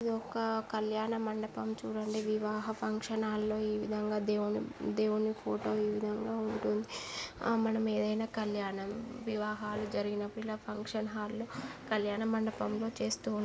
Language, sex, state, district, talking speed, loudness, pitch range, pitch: Telugu, female, Andhra Pradesh, Guntur, 135 wpm, -35 LUFS, 210-220 Hz, 215 Hz